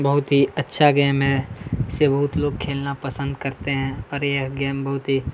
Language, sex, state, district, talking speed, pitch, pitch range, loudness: Hindi, male, Chhattisgarh, Kabirdham, 190 wpm, 140 Hz, 135-140 Hz, -22 LUFS